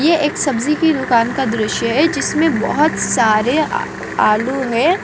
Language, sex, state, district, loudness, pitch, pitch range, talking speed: Hindi, female, Bihar, Purnia, -16 LUFS, 265 Hz, 230-310 Hz, 165 wpm